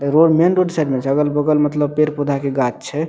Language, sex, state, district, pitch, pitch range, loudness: Maithili, male, Bihar, Madhepura, 150 Hz, 140-155 Hz, -17 LUFS